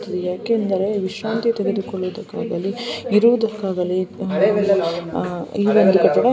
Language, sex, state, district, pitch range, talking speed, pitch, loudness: Kannada, female, Karnataka, Shimoga, 185-220 Hz, 65 wpm, 200 Hz, -20 LUFS